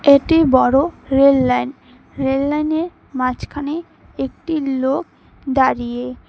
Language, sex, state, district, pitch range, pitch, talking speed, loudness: Bengali, female, West Bengal, Cooch Behar, 260-300 Hz, 275 Hz, 95 wpm, -18 LUFS